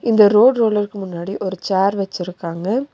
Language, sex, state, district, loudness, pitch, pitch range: Tamil, female, Tamil Nadu, Nilgiris, -18 LUFS, 200 Hz, 185-215 Hz